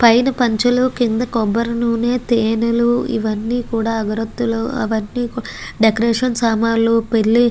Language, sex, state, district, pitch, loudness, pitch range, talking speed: Telugu, female, Andhra Pradesh, Guntur, 230 Hz, -17 LUFS, 225-240 Hz, 120 wpm